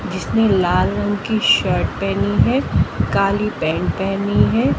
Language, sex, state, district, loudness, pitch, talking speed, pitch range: Hindi, female, Haryana, Jhajjar, -18 LUFS, 200 Hz, 140 wpm, 190-210 Hz